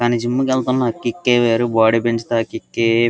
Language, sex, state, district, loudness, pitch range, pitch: Telugu, male, Andhra Pradesh, Guntur, -17 LUFS, 115-125 Hz, 120 Hz